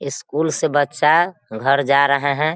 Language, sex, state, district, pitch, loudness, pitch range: Hindi, female, Bihar, Sitamarhi, 145 Hz, -18 LUFS, 140-155 Hz